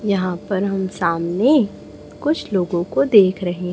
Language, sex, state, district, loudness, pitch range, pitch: Hindi, female, Chhattisgarh, Raipur, -19 LUFS, 180-205 Hz, 190 Hz